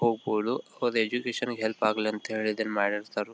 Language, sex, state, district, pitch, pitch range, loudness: Kannada, male, Karnataka, Belgaum, 110 Hz, 110-120 Hz, -29 LUFS